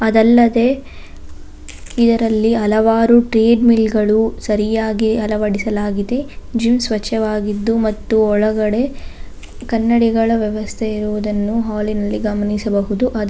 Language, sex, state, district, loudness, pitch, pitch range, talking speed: Kannada, female, Karnataka, Bangalore, -16 LUFS, 220 Hz, 210-230 Hz, 90 wpm